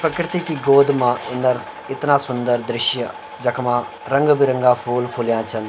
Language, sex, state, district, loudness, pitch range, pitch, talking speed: Garhwali, male, Uttarakhand, Uttarkashi, -19 LUFS, 120-140 Hz, 125 Hz, 150 wpm